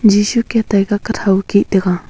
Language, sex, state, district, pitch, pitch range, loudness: Wancho, female, Arunachal Pradesh, Longding, 205 Hz, 195-225 Hz, -15 LUFS